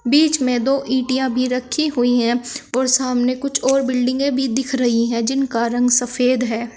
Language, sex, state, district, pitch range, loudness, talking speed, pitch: Hindi, female, Uttar Pradesh, Shamli, 245-265 Hz, -18 LUFS, 195 wpm, 255 Hz